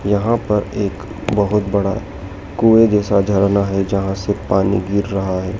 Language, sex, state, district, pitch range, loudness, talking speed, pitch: Hindi, male, Madhya Pradesh, Dhar, 95-105 Hz, -17 LUFS, 160 wpm, 100 Hz